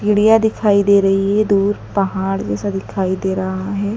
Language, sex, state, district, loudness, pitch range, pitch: Hindi, female, Madhya Pradesh, Dhar, -16 LUFS, 190-205 Hz, 200 Hz